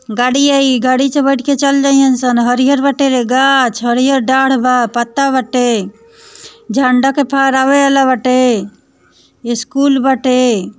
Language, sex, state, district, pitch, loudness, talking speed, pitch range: Bhojpuri, female, Bihar, East Champaran, 260 Hz, -12 LUFS, 130 wpm, 250-275 Hz